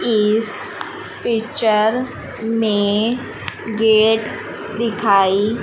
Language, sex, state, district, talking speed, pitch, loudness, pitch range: Hindi, female, Madhya Pradesh, Dhar, 55 wpm, 220 Hz, -18 LUFS, 210-230 Hz